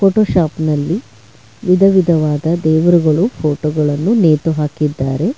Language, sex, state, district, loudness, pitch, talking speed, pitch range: Kannada, female, Karnataka, Bangalore, -14 LUFS, 160 Hz, 100 wpm, 150-180 Hz